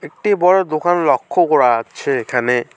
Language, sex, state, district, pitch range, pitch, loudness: Bengali, male, West Bengal, Alipurduar, 120-175 Hz, 125 Hz, -16 LUFS